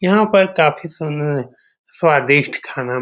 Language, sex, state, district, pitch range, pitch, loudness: Hindi, male, Bihar, Saran, 140-175 Hz, 150 Hz, -16 LUFS